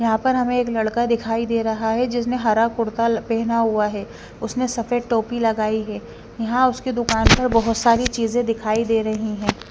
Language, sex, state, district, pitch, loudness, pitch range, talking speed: Hindi, female, Bihar, Katihar, 230 Hz, -20 LUFS, 220-240 Hz, 190 wpm